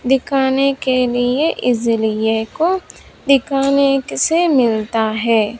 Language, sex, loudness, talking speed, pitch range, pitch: Hindi, female, -16 LUFS, 105 wpm, 225-275 Hz, 255 Hz